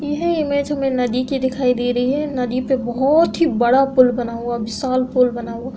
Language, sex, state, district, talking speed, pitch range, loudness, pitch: Hindi, female, Uttar Pradesh, Deoria, 230 wpm, 245-275 Hz, -18 LUFS, 255 Hz